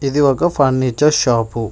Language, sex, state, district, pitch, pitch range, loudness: Telugu, male, Telangana, Mahabubabad, 135 Hz, 120-145 Hz, -15 LUFS